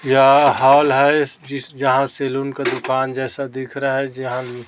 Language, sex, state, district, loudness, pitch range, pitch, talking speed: Hindi, female, Chhattisgarh, Raipur, -17 LUFS, 130-140 Hz, 135 Hz, 205 wpm